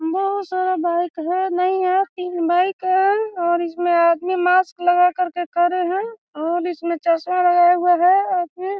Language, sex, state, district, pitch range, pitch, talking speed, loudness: Hindi, female, Bihar, Sitamarhi, 345-370 Hz, 360 Hz, 175 wpm, -19 LUFS